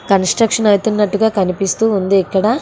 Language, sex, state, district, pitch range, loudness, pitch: Telugu, female, Andhra Pradesh, Srikakulam, 195-220 Hz, -14 LUFS, 205 Hz